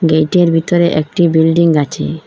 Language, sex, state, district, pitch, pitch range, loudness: Bengali, female, Assam, Hailakandi, 165 Hz, 155-170 Hz, -12 LUFS